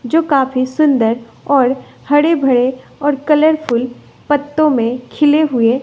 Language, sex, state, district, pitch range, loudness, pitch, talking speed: Hindi, female, Bihar, West Champaran, 250-300 Hz, -14 LUFS, 275 Hz, 125 wpm